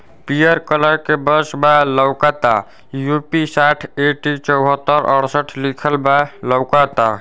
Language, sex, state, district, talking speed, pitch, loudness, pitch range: Bhojpuri, male, Uttar Pradesh, Ghazipur, 115 wpm, 145 Hz, -15 LUFS, 135-150 Hz